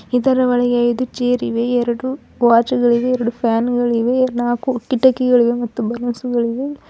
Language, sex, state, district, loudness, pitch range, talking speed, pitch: Kannada, female, Karnataka, Bidar, -17 LUFS, 240-255 Hz, 105 wpm, 245 Hz